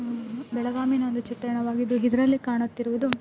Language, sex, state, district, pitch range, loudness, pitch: Kannada, female, Karnataka, Belgaum, 240-250 Hz, -26 LUFS, 245 Hz